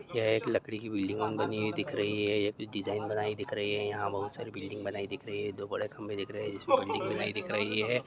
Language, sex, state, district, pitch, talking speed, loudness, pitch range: Hindi, male, Bihar, Kishanganj, 105 Hz, 290 wpm, -33 LUFS, 100-110 Hz